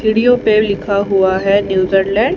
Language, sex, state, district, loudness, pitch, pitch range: Hindi, female, Haryana, Charkhi Dadri, -13 LUFS, 200 Hz, 195-215 Hz